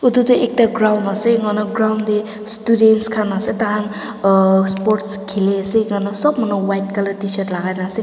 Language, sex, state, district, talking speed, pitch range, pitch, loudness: Nagamese, female, Nagaland, Dimapur, 195 wpm, 200-220 Hz, 210 Hz, -17 LUFS